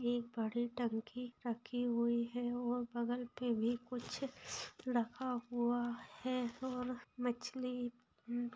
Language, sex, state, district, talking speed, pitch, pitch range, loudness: Hindi, female, Bihar, Lakhisarai, 125 wpm, 245 Hz, 235-250 Hz, -40 LUFS